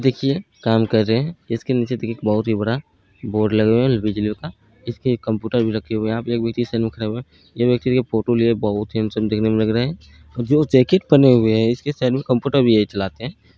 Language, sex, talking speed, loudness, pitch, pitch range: Maithili, male, 180 wpm, -19 LUFS, 115 Hz, 110-125 Hz